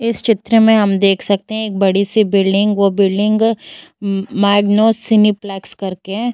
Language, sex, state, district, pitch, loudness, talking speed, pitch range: Hindi, female, Uttar Pradesh, Jyotiba Phule Nagar, 205 Hz, -14 LUFS, 170 wpm, 195-220 Hz